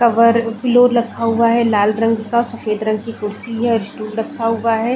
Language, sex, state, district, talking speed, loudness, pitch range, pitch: Hindi, female, Chhattisgarh, Bilaspur, 195 wpm, -17 LUFS, 220-235 Hz, 230 Hz